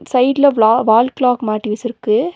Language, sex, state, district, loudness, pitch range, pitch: Tamil, female, Tamil Nadu, Nilgiris, -14 LUFS, 225-275 Hz, 245 Hz